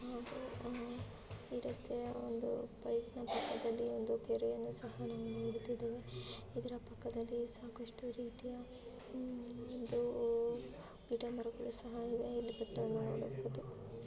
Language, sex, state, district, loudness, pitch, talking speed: Kannada, female, Karnataka, Chamarajanagar, -43 LUFS, 235 Hz, 110 wpm